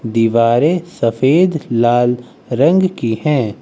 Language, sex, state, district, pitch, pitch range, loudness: Hindi, male, Uttar Pradesh, Lucknow, 125 Hz, 115-160 Hz, -14 LUFS